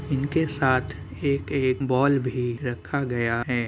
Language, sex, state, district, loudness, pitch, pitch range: Hindi, male, Bihar, Muzaffarpur, -25 LUFS, 130 Hz, 120-140 Hz